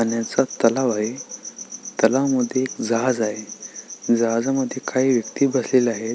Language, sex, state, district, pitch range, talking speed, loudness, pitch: Marathi, male, Maharashtra, Sindhudurg, 115-130 Hz, 115 wpm, -21 LUFS, 120 Hz